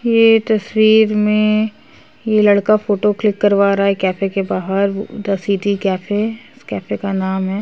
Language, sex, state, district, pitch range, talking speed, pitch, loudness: Hindi, female, Uttar Pradesh, Jalaun, 195-215 Hz, 165 wpm, 205 Hz, -16 LUFS